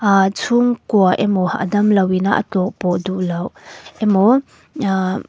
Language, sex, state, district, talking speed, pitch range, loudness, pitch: Mizo, female, Mizoram, Aizawl, 135 wpm, 185-210 Hz, -17 LUFS, 195 Hz